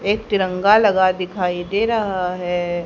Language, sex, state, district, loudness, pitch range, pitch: Hindi, female, Haryana, Jhajjar, -18 LUFS, 180-205 Hz, 185 Hz